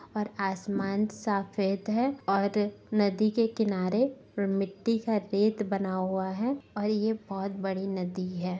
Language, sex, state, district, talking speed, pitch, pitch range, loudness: Bhojpuri, female, Bihar, Saran, 140 wpm, 200 Hz, 195-215 Hz, -30 LUFS